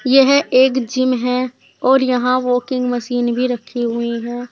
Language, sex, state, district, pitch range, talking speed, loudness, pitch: Hindi, female, Uttar Pradesh, Saharanpur, 245-255 Hz, 160 wpm, -17 LUFS, 250 Hz